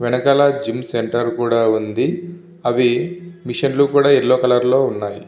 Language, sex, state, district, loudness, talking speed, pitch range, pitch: Telugu, male, Andhra Pradesh, Visakhapatnam, -17 LUFS, 150 wpm, 120-140 Hz, 125 Hz